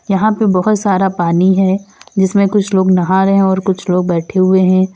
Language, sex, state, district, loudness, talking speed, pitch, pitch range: Hindi, female, Uttar Pradesh, Lalitpur, -13 LUFS, 205 wpm, 190 Hz, 185-200 Hz